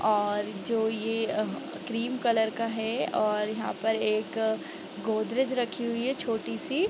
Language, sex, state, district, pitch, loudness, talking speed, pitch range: Hindi, female, Bihar, Sitamarhi, 225 Hz, -29 LUFS, 150 wpm, 215-235 Hz